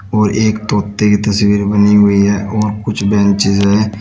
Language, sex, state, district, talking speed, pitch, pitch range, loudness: Hindi, male, Uttar Pradesh, Shamli, 180 wpm, 105 Hz, 100-105 Hz, -12 LUFS